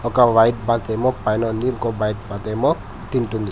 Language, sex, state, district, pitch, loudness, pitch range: Telugu, male, Telangana, Hyderabad, 115 Hz, -20 LUFS, 110-120 Hz